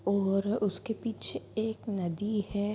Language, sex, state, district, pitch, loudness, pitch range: Hindi, female, Jharkhand, Jamtara, 205 Hz, -32 LUFS, 195-220 Hz